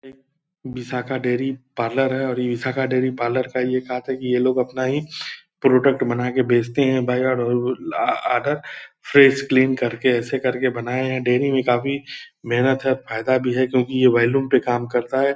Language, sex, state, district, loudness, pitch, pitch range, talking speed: Hindi, male, Bihar, Purnia, -20 LUFS, 130 Hz, 125-130 Hz, 185 wpm